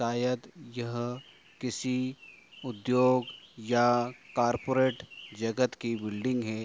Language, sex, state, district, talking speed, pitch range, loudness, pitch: Hindi, male, Uttar Pradesh, Hamirpur, 90 wpm, 120-125 Hz, -30 LUFS, 120 Hz